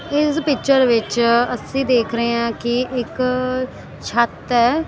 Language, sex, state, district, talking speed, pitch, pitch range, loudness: Punjabi, female, Punjab, Kapurthala, 135 wpm, 250 Hz, 235-265 Hz, -18 LUFS